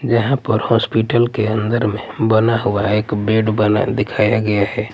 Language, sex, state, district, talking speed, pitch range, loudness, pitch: Hindi, male, Punjab, Pathankot, 170 wpm, 105-115 Hz, -17 LUFS, 110 Hz